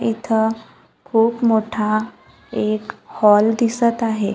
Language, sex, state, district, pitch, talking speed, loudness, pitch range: Marathi, female, Maharashtra, Gondia, 225 Hz, 95 wpm, -18 LUFS, 215-230 Hz